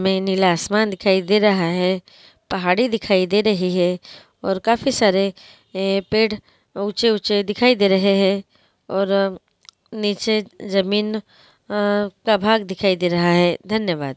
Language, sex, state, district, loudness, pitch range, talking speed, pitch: Hindi, female, Maharashtra, Dhule, -19 LUFS, 190-210 Hz, 140 wpm, 195 Hz